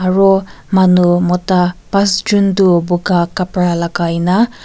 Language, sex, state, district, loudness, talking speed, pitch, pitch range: Nagamese, female, Nagaland, Kohima, -13 LUFS, 115 wpm, 180 Hz, 175-195 Hz